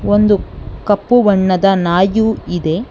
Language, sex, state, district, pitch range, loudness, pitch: Kannada, female, Karnataka, Bangalore, 185-210 Hz, -14 LUFS, 200 Hz